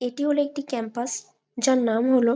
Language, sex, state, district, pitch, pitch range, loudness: Bengali, female, West Bengal, Jalpaiguri, 245 Hz, 235-280 Hz, -24 LUFS